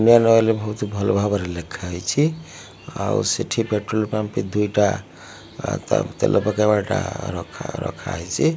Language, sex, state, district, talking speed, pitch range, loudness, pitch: Odia, male, Odisha, Malkangiri, 135 wpm, 100-115 Hz, -21 LUFS, 105 Hz